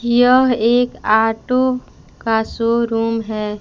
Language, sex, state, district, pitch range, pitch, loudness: Hindi, female, Jharkhand, Palamu, 225-245 Hz, 230 Hz, -16 LUFS